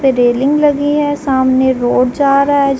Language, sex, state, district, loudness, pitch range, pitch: Hindi, female, Uttar Pradesh, Varanasi, -12 LUFS, 260-285 Hz, 275 Hz